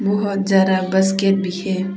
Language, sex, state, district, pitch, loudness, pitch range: Hindi, female, Arunachal Pradesh, Papum Pare, 195 Hz, -18 LUFS, 190-195 Hz